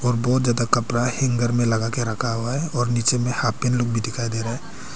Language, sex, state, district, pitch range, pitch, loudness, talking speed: Hindi, male, Arunachal Pradesh, Papum Pare, 115-125 Hz, 120 Hz, -22 LUFS, 220 wpm